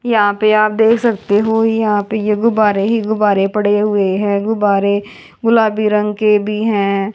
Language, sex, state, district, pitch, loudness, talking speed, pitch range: Hindi, female, Haryana, Jhajjar, 210 Hz, -14 LUFS, 175 wpm, 205-220 Hz